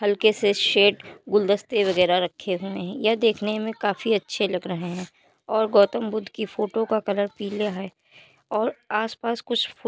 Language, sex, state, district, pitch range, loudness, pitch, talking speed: Hindi, male, Uttar Pradesh, Jalaun, 200-220 Hz, -23 LUFS, 210 Hz, 180 wpm